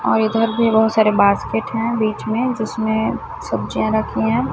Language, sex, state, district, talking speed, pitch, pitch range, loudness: Hindi, female, Chhattisgarh, Raipur, 170 wpm, 220 Hz, 220-225 Hz, -18 LUFS